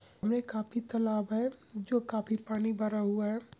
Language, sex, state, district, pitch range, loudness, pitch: Hindi, male, Bihar, Madhepura, 215-235 Hz, -33 LUFS, 220 Hz